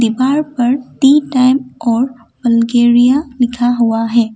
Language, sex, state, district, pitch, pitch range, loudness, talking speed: Hindi, female, Assam, Kamrup Metropolitan, 245 Hz, 235-260 Hz, -13 LUFS, 125 wpm